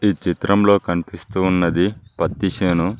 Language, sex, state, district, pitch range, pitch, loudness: Telugu, male, Telangana, Mahabubabad, 85-100 Hz, 95 Hz, -19 LUFS